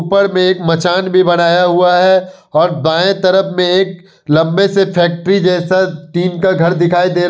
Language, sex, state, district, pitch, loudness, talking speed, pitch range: Hindi, male, Bihar, Kishanganj, 180 Hz, -12 LUFS, 190 wpm, 175-190 Hz